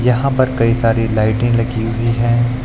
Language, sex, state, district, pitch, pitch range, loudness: Hindi, male, Uttar Pradesh, Lucknow, 120 Hz, 115-125 Hz, -15 LUFS